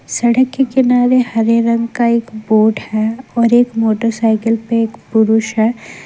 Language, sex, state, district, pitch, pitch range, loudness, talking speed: Hindi, female, Jharkhand, Ranchi, 230 Hz, 220-240 Hz, -14 LUFS, 170 wpm